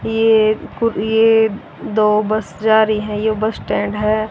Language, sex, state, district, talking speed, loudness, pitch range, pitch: Hindi, female, Haryana, Rohtak, 140 wpm, -16 LUFS, 215-220 Hz, 215 Hz